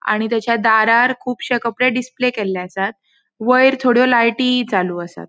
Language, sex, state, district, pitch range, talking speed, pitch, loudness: Konkani, female, Goa, North and South Goa, 215-250 Hz, 145 wpm, 235 Hz, -16 LUFS